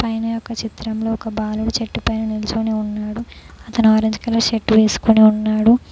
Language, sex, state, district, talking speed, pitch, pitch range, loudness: Telugu, female, Telangana, Mahabubabad, 150 wpm, 220 Hz, 215-225 Hz, -18 LUFS